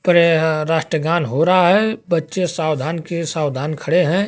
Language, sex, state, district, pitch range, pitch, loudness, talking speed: Hindi, male, Bihar, Kaimur, 155-175 Hz, 165 Hz, -18 LUFS, 170 wpm